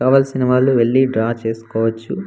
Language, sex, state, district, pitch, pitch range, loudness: Telugu, male, Andhra Pradesh, Anantapur, 125 Hz, 115-130 Hz, -16 LUFS